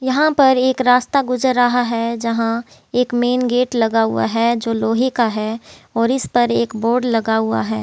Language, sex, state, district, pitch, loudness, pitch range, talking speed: Hindi, female, Haryana, Jhajjar, 235 Hz, -17 LUFS, 225-250 Hz, 200 wpm